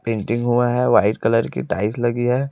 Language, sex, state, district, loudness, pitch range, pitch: Hindi, male, Chhattisgarh, Raipur, -19 LUFS, 110-120 Hz, 120 Hz